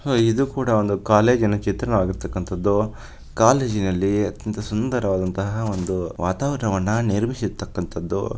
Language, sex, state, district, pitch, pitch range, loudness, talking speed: Kannada, male, Karnataka, Shimoga, 105 Hz, 95-115 Hz, -22 LUFS, 100 wpm